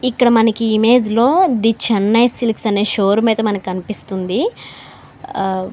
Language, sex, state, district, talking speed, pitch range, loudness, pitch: Telugu, female, Andhra Pradesh, Anantapur, 145 wpm, 205-240 Hz, -15 LUFS, 225 Hz